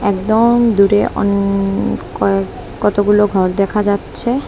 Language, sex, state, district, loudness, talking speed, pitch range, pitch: Bengali, female, Assam, Hailakandi, -14 LUFS, 105 wpm, 195-210 Hz, 200 Hz